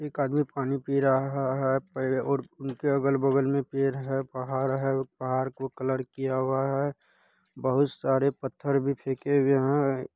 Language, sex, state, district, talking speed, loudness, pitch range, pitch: Hindi, male, Bihar, Purnia, 170 wpm, -28 LUFS, 130-140 Hz, 135 Hz